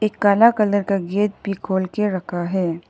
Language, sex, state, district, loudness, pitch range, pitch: Hindi, female, Arunachal Pradesh, Lower Dibang Valley, -20 LUFS, 185-210 Hz, 195 Hz